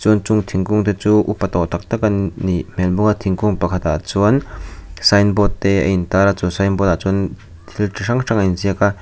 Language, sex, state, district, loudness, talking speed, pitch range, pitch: Mizo, male, Mizoram, Aizawl, -17 LUFS, 245 wpm, 90-105 Hz, 100 Hz